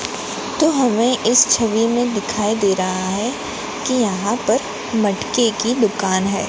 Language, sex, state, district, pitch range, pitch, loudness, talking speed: Hindi, female, Gujarat, Gandhinagar, 200-240 Hz, 220 Hz, -18 LUFS, 150 wpm